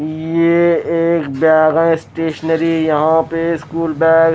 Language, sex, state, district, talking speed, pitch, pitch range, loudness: Hindi, male, Bihar, West Champaran, 140 wpm, 165 Hz, 160-165 Hz, -14 LUFS